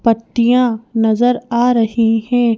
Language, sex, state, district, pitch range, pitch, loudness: Hindi, female, Madhya Pradesh, Bhopal, 225-245 Hz, 235 Hz, -15 LUFS